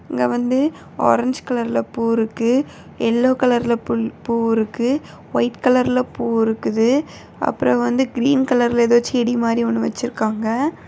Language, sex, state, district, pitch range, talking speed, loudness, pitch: Tamil, female, Tamil Nadu, Kanyakumari, 230-255 Hz, 125 wpm, -19 LUFS, 240 Hz